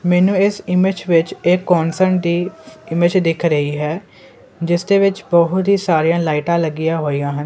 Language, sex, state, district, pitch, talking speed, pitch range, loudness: Punjabi, male, Punjab, Kapurthala, 175 Hz, 155 wpm, 160-185 Hz, -16 LUFS